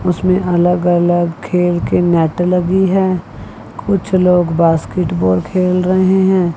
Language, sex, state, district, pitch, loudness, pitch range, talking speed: Hindi, female, Chandigarh, Chandigarh, 180 Hz, -14 LUFS, 170-185 Hz, 130 wpm